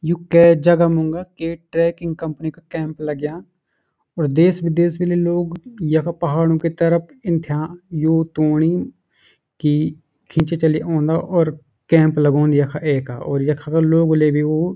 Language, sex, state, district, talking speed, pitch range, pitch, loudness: Garhwali, male, Uttarakhand, Uttarkashi, 155 wpm, 155-170 Hz, 160 Hz, -18 LUFS